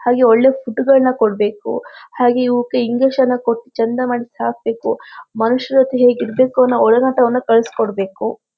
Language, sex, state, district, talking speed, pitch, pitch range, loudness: Kannada, female, Karnataka, Shimoga, 140 wpm, 245 Hz, 230-255 Hz, -15 LUFS